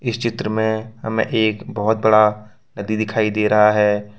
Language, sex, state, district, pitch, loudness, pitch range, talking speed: Hindi, male, Jharkhand, Ranchi, 110 Hz, -18 LUFS, 105-110 Hz, 170 wpm